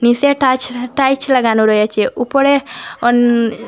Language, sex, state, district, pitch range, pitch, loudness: Bengali, female, Assam, Hailakandi, 235-270 Hz, 245 Hz, -14 LUFS